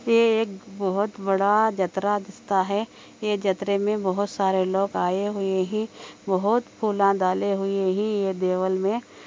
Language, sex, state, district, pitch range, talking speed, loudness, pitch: Hindi, female, Andhra Pradesh, Anantapur, 190-210 Hz, 155 wpm, -24 LUFS, 200 Hz